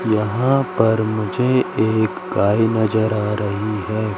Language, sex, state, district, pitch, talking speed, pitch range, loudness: Hindi, male, Madhya Pradesh, Katni, 110 Hz, 130 wpm, 105-115 Hz, -19 LUFS